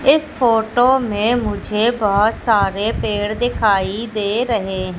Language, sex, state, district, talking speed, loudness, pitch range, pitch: Hindi, female, Madhya Pradesh, Katni, 120 wpm, -17 LUFS, 205-240 Hz, 220 Hz